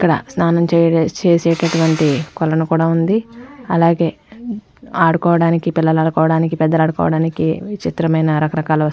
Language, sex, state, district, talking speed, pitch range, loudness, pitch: Telugu, female, Andhra Pradesh, Krishna, 115 wpm, 160-170 Hz, -15 LUFS, 165 Hz